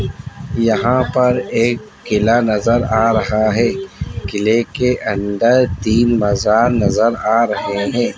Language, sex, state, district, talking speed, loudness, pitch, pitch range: Hindi, male, Bihar, Bhagalpur, 125 wpm, -16 LUFS, 115 Hz, 105-125 Hz